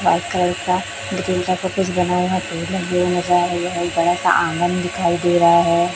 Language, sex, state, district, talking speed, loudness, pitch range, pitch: Hindi, male, Chhattisgarh, Raipur, 160 wpm, -18 LUFS, 175-180 Hz, 180 Hz